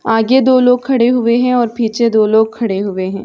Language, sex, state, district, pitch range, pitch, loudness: Hindi, female, Uttar Pradesh, Hamirpur, 220-250 Hz, 235 Hz, -13 LUFS